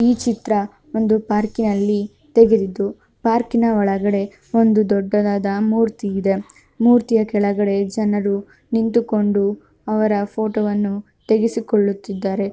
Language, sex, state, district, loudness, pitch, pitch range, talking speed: Kannada, female, Karnataka, Mysore, -19 LUFS, 210 Hz, 200-225 Hz, 85 wpm